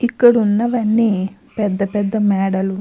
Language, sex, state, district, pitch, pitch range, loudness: Telugu, female, Andhra Pradesh, Krishna, 210 Hz, 195-230 Hz, -17 LUFS